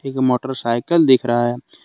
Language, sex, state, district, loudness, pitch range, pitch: Hindi, male, Jharkhand, Deoghar, -17 LUFS, 120-135 Hz, 125 Hz